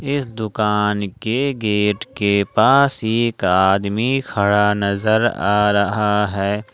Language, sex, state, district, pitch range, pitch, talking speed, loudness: Hindi, male, Jharkhand, Ranchi, 100-115 Hz, 105 Hz, 115 wpm, -18 LUFS